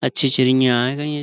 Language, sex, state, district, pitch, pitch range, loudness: Urdu, male, Uttar Pradesh, Budaun, 130 Hz, 130-145 Hz, -17 LUFS